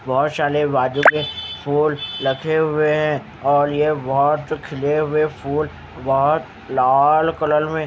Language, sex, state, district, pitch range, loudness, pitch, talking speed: Hindi, male, Haryana, Jhajjar, 135-155 Hz, -19 LUFS, 145 Hz, 135 wpm